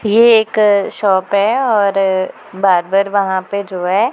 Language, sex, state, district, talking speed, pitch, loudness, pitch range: Hindi, female, Punjab, Pathankot, 160 wpm, 200 Hz, -14 LUFS, 190-210 Hz